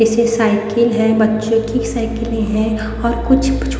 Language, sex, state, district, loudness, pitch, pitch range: Hindi, female, Haryana, Rohtak, -16 LUFS, 225 Hz, 220-235 Hz